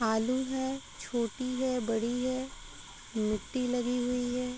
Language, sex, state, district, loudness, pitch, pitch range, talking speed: Hindi, female, Uttar Pradesh, Varanasi, -32 LUFS, 250 Hz, 235-255 Hz, 130 wpm